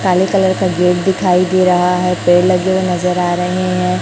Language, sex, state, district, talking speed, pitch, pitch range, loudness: Hindi, male, Chhattisgarh, Raipur, 225 wpm, 180 Hz, 180-185 Hz, -13 LUFS